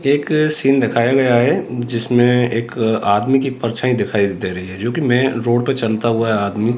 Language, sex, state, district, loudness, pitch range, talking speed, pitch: Hindi, male, Rajasthan, Jaipur, -16 LUFS, 110-130 Hz, 205 wpm, 120 Hz